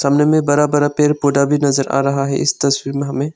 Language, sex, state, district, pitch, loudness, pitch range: Hindi, male, Arunachal Pradesh, Lower Dibang Valley, 140 Hz, -15 LUFS, 140-145 Hz